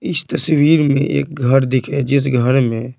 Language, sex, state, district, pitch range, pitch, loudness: Hindi, male, Bihar, Patna, 130-145 Hz, 135 Hz, -15 LUFS